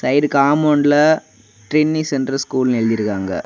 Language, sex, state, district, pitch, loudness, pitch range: Tamil, male, Tamil Nadu, Kanyakumari, 135 Hz, -16 LUFS, 115-150 Hz